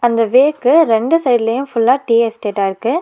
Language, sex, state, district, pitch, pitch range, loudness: Tamil, female, Tamil Nadu, Nilgiris, 240 Hz, 225-265 Hz, -14 LUFS